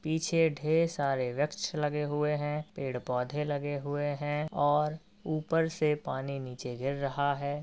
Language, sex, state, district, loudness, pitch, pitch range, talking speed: Hindi, female, Uttar Pradesh, Varanasi, -31 LUFS, 145 Hz, 140-155 Hz, 155 wpm